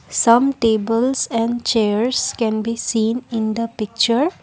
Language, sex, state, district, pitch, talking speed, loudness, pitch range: English, female, Assam, Kamrup Metropolitan, 230 Hz, 135 wpm, -18 LUFS, 225-240 Hz